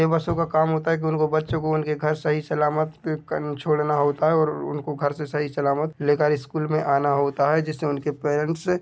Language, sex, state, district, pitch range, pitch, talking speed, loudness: Hindi, male, Chhattisgarh, Bilaspur, 145-155 Hz, 150 Hz, 240 wpm, -23 LUFS